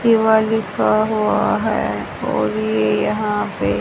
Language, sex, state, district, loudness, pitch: Hindi, female, Haryana, Charkhi Dadri, -18 LUFS, 210 Hz